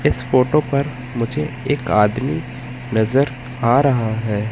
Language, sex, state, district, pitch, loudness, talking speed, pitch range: Hindi, male, Madhya Pradesh, Katni, 125 Hz, -19 LUFS, 135 wpm, 115-140 Hz